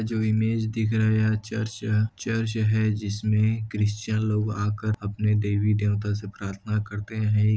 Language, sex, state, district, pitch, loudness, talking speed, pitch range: Hindi, male, Chhattisgarh, Kabirdham, 110 Hz, -25 LUFS, 160 wpm, 105-110 Hz